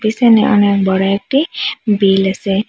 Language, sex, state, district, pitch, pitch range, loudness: Bengali, female, Assam, Hailakandi, 205 Hz, 195-235 Hz, -13 LUFS